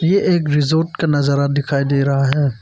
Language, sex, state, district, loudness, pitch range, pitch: Hindi, male, Arunachal Pradesh, Papum Pare, -16 LUFS, 140-160 Hz, 145 Hz